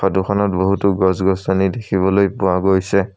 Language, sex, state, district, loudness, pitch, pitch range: Assamese, male, Assam, Sonitpur, -17 LUFS, 95 Hz, 95-100 Hz